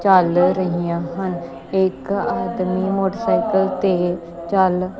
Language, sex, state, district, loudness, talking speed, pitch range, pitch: Punjabi, female, Punjab, Kapurthala, -20 LUFS, 95 wpm, 175-195 Hz, 185 Hz